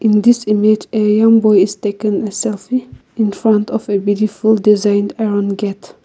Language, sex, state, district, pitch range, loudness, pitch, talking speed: English, female, Nagaland, Kohima, 205-220 Hz, -14 LUFS, 210 Hz, 170 wpm